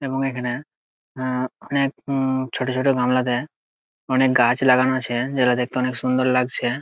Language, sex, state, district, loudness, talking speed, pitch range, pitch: Bengali, male, West Bengal, Jalpaiguri, -21 LUFS, 150 wpm, 125-130 Hz, 130 Hz